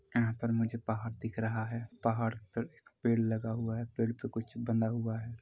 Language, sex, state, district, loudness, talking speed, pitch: Hindi, male, Chhattisgarh, Rajnandgaon, -35 LUFS, 220 wpm, 115 Hz